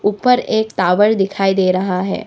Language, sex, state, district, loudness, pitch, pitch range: Hindi, female, Arunachal Pradesh, Papum Pare, -15 LUFS, 195 Hz, 185-215 Hz